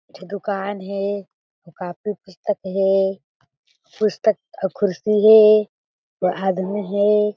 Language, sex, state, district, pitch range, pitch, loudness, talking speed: Chhattisgarhi, female, Chhattisgarh, Jashpur, 190-210 Hz, 200 Hz, -19 LUFS, 115 wpm